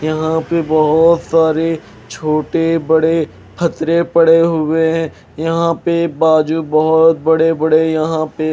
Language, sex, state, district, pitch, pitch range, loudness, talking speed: Hindi, male, Bihar, Patna, 160 Hz, 155-165 Hz, -14 LUFS, 125 wpm